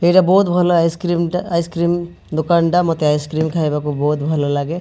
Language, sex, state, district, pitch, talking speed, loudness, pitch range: Odia, male, Odisha, Malkangiri, 170 Hz, 150 wpm, -17 LUFS, 155-175 Hz